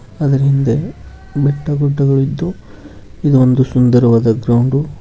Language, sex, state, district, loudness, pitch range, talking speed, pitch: Kannada, male, Karnataka, Koppal, -14 LUFS, 120-145 Hz, 110 wpm, 135 Hz